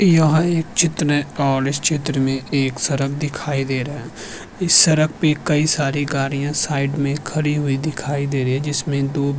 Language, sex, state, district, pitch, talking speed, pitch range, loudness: Hindi, male, Uttarakhand, Tehri Garhwal, 145 Hz, 200 wpm, 140-155 Hz, -19 LUFS